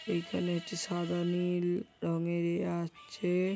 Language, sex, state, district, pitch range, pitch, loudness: Bengali, male, West Bengal, Kolkata, 170-180 Hz, 175 Hz, -34 LUFS